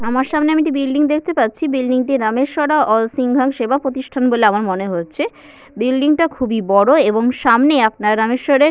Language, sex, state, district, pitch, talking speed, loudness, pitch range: Bengali, female, West Bengal, Purulia, 260 Hz, 200 wpm, -16 LUFS, 225-290 Hz